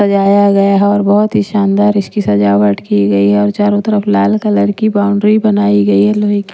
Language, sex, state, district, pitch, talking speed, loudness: Hindi, female, Haryana, Rohtak, 200 Hz, 220 wpm, -11 LUFS